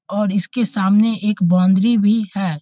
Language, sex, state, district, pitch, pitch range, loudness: Hindi, male, Bihar, Muzaffarpur, 205 Hz, 190-220 Hz, -17 LUFS